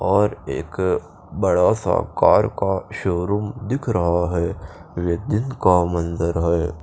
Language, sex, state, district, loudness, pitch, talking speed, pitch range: Hindi, male, Chandigarh, Chandigarh, -21 LUFS, 90 Hz, 115 wpm, 85-105 Hz